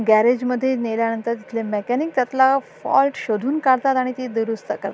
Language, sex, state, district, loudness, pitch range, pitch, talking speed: Marathi, female, Maharashtra, Sindhudurg, -20 LUFS, 225-260 Hz, 250 Hz, 170 wpm